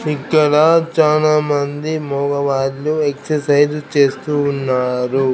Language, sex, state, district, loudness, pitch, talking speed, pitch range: Telugu, male, Andhra Pradesh, Krishna, -16 LUFS, 145 Hz, 80 wpm, 140-150 Hz